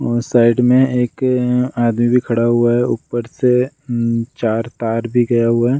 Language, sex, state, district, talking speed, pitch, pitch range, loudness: Hindi, male, Bihar, Gaya, 175 wpm, 120 Hz, 115-125 Hz, -16 LUFS